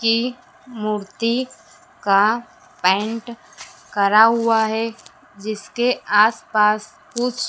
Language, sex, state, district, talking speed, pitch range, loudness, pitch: Hindi, female, Madhya Pradesh, Dhar, 80 wpm, 210-240 Hz, -19 LUFS, 225 Hz